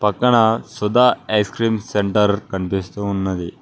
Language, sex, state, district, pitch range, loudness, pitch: Telugu, male, Telangana, Mahabubabad, 95-110 Hz, -18 LUFS, 105 Hz